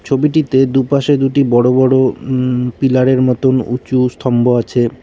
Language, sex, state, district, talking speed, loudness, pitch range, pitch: Bengali, male, West Bengal, Cooch Behar, 130 wpm, -13 LUFS, 125-135 Hz, 130 Hz